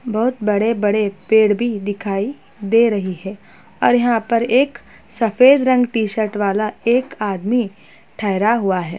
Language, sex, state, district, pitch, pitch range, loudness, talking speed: Hindi, female, Maharashtra, Chandrapur, 215 Hz, 205-235 Hz, -17 LUFS, 155 wpm